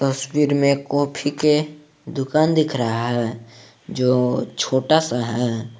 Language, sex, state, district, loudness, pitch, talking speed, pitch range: Hindi, male, Jharkhand, Garhwa, -20 LUFS, 135 Hz, 125 wpm, 120-150 Hz